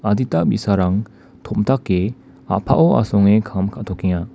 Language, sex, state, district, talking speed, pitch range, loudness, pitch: Garo, male, Meghalaya, West Garo Hills, 95 wpm, 95-115 Hz, -18 LUFS, 100 Hz